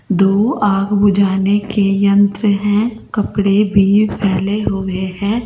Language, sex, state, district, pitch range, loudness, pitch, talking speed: Hindi, female, Uttar Pradesh, Saharanpur, 195-210 Hz, -15 LUFS, 200 Hz, 120 wpm